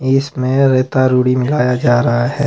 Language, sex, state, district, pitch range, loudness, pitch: Hindi, male, Himachal Pradesh, Shimla, 125-135 Hz, -14 LUFS, 130 Hz